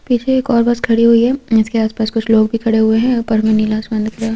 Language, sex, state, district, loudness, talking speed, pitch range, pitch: Hindi, female, Chhattisgarh, Korba, -14 LUFS, 290 wpm, 220-235 Hz, 225 Hz